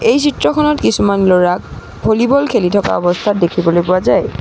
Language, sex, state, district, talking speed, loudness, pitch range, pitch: Assamese, female, Assam, Sonitpur, 150 wpm, -13 LUFS, 180-255 Hz, 200 Hz